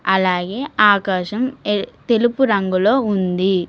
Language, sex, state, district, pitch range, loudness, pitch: Telugu, female, Telangana, Mahabubabad, 185-235 Hz, -17 LUFS, 200 Hz